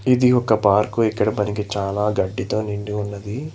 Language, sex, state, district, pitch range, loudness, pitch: Telugu, male, Telangana, Hyderabad, 100-115 Hz, -20 LUFS, 105 Hz